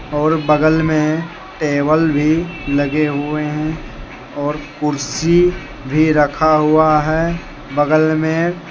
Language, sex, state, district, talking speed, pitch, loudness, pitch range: Hindi, male, Jharkhand, Deoghar, 115 wpm, 155 Hz, -16 LUFS, 150-160 Hz